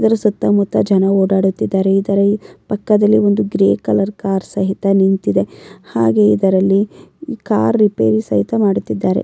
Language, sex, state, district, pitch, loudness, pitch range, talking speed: Kannada, female, Karnataka, Mysore, 195 Hz, -15 LUFS, 190-205 Hz, 125 wpm